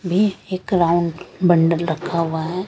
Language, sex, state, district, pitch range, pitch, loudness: Hindi, female, Chandigarh, Chandigarh, 165-185 Hz, 175 Hz, -19 LUFS